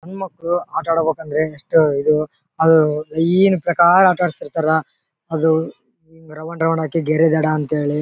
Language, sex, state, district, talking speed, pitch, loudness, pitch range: Kannada, male, Karnataka, Bellary, 165 wpm, 160 Hz, -17 LUFS, 155-170 Hz